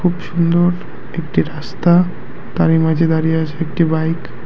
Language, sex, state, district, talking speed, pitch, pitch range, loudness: Bengali, male, West Bengal, Cooch Behar, 150 wpm, 165 Hz, 160-175 Hz, -16 LUFS